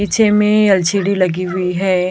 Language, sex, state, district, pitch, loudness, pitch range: Hindi, female, Maharashtra, Gondia, 195 Hz, -14 LUFS, 185-205 Hz